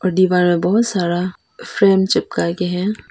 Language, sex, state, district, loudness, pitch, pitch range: Hindi, female, Arunachal Pradesh, Papum Pare, -17 LUFS, 185 Hz, 180-195 Hz